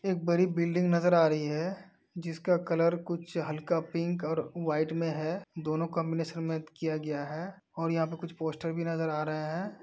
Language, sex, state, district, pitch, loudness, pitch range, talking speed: Hindi, male, Uttar Pradesh, Etah, 165 Hz, -31 LUFS, 160-170 Hz, 190 wpm